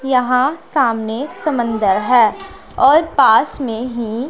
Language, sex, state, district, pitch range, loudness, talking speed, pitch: Hindi, female, Punjab, Pathankot, 230-290 Hz, -15 LUFS, 125 wpm, 250 Hz